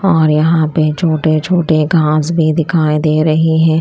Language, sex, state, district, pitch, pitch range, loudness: Hindi, female, Punjab, Kapurthala, 160 Hz, 155-165 Hz, -12 LUFS